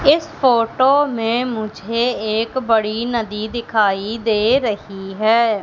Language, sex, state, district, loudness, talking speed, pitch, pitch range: Hindi, female, Madhya Pradesh, Katni, -18 LUFS, 115 wpm, 225 Hz, 215-245 Hz